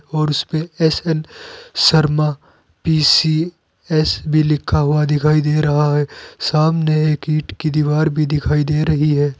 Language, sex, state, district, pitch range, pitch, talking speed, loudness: Hindi, male, Uttar Pradesh, Saharanpur, 150-155 Hz, 155 Hz, 155 wpm, -16 LUFS